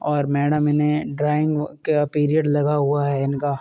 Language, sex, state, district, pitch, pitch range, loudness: Hindi, male, Uttar Pradesh, Muzaffarnagar, 150 Hz, 145-150 Hz, -21 LUFS